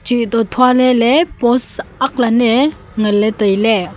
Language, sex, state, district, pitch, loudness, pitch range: Wancho, female, Arunachal Pradesh, Longding, 240 Hz, -13 LUFS, 220-255 Hz